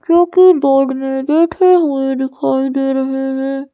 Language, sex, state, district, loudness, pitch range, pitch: Hindi, female, Madhya Pradesh, Bhopal, -14 LUFS, 265-335 Hz, 270 Hz